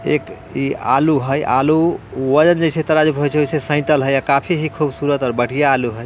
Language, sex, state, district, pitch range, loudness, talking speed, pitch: Bhojpuri, male, Bihar, Muzaffarpur, 135-155 Hz, -16 LUFS, 160 wpm, 145 Hz